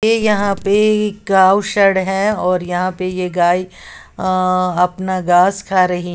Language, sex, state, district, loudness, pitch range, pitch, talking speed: Hindi, female, Uttar Pradesh, Lalitpur, -15 LUFS, 180-200 Hz, 185 Hz, 165 wpm